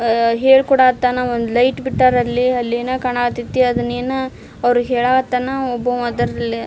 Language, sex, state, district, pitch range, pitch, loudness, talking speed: Kannada, female, Karnataka, Dharwad, 240-255 Hz, 245 Hz, -16 LUFS, 125 wpm